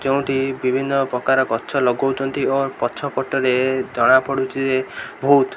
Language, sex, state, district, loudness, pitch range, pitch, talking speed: Odia, male, Odisha, Khordha, -19 LUFS, 130-135 Hz, 135 Hz, 140 wpm